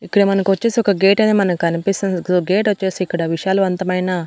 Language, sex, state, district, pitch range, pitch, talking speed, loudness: Telugu, female, Andhra Pradesh, Annamaya, 180-200 Hz, 190 Hz, 140 wpm, -17 LUFS